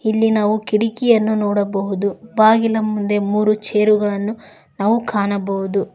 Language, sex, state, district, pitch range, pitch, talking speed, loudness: Kannada, female, Karnataka, Koppal, 205-220 Hz, 210 Hz, 100 wpm, -17 LUFS